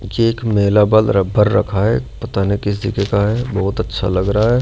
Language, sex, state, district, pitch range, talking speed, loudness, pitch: Hindi, male, Rajasthan, Jaipur, 100-110 Hz, 170 wpm, -16 LUFS, 100 Hz